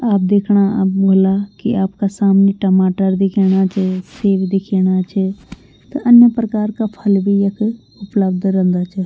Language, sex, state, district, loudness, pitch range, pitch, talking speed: Garhwali, female, Uttarakhand, Tehri Garhwal, -15 LUFS, 190-205 Hz, 195 Hz, 145 wpm